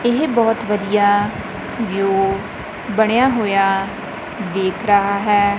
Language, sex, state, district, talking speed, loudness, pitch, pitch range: Punjabi, male, Punjab, Kapurthala, 95 wpm, -17 LUFS, 205 Hz, 195-225 Hz